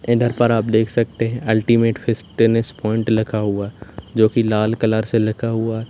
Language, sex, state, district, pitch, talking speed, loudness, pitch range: Hindi, male, Uttar Pradesh, Saharanpur, 115 Hz, 195 wpm, -18 LUFS, 110-115 Hz